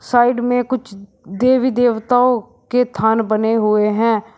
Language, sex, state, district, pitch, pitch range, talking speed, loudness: Hindi, male, Uttar Pradesh, Shamli, 235 Hz, 215-245 Hz, 135 wpm, -16 LUFS